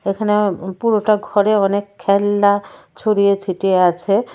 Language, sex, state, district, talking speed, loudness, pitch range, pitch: Bengali, female, Tripura, West Tripura, 110 wpm, -17 LUFS, 195-210 Hz, 200 Hz